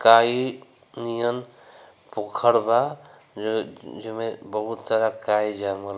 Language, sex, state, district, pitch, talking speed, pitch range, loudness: Bhojpuri, male, Bihar, Gopalganj, 110 Hz, 90 wpm, 105-120 Hz, -24 LUFS